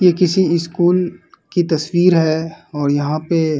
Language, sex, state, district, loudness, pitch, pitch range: Hindi, male, Uttar Pradesh, Varanasi, -16 LUFS, 165 Hz, 155-180 Hz